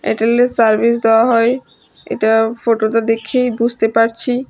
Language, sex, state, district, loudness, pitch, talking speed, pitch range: Bengali, female, Tripura, West Tripura, -14 LUFS, 230 Hz, 120 wpm, 225-240 Hz